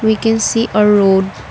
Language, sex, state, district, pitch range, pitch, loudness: English, female, Assam, Kamrup Metropolitan, 200-225 Hz, 215 Hz, -13 LUFS